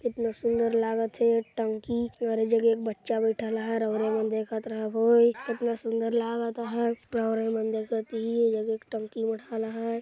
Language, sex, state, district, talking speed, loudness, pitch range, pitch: Chhattisgarhi, male, Chhattisgarh, Jashpur, 145 wpm, -28 LUFS, 220-235 Hz, 225 Hz